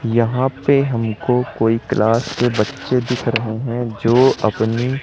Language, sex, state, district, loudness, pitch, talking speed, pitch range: Hindi, male, Madhya Pradesh, Katni, -18 LUFS, 120 Hz, 145 wpm, 115-130 Hz